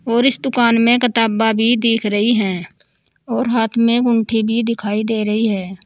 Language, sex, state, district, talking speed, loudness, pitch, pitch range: Hindi, female, Uttar Pradesh, Saharanpur, 195 wpm, -16 LUFS, 225 Hz, 215-235 Hz